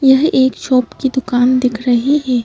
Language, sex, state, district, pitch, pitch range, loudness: Hindi, female, Madhya Pradesh, Bhopal, 255 Hz, 250-265 Hz, -14 LUFS